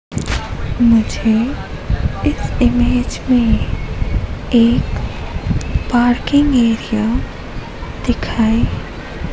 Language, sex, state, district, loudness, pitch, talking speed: Hindi, female, Madhya Pradesh, Katni, -17 LUFS, 225 Hz, 50 wpm